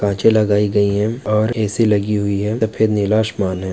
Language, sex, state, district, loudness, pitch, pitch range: Hindi, male, Maharashtra, Pune, -17 LUFS, 105 Hz, 100-110 Hz